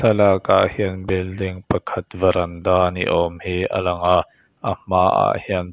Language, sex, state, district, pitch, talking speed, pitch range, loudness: Mizo, male, Mizoram, Aizawl, 90 Hz, 145 wpm, 90-95 Hz, -19 LUFS